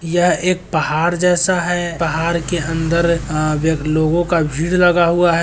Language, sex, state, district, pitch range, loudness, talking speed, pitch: Hindi, male, Bihar, Gopalganj, 160-175 Hz, -16 LUFS, 165 wpm, 170 Hz